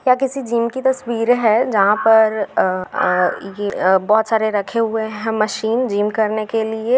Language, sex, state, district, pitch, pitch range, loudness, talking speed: Hindi, female, Bihar, Gaya, 220 Hz, 210-235 Hz, -17 LUFS, 190 wpm